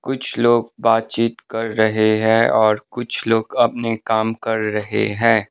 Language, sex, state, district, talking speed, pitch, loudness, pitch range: Hindi, male, Sikkim, Gangtok, 155 wpm, 115 Hz, -18 LUFS, 110-115 Hz